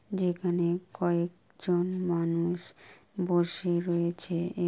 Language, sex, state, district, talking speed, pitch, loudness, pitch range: Bengali, female, West Bengal, Kolkata, 90 wpm, 175 Hz, -30 LUFS, 170-180 Hz